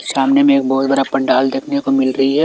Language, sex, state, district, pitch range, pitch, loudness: Hindi, male, Chhattisgarh, Raipur, 135-140 Hz, 135 Hz, -15 LUFS